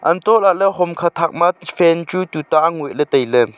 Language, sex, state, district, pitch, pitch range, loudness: Wancho, male, Arunachal Pradesh, Longding, 170 Hz, 155-180 Hz, -16 LUFS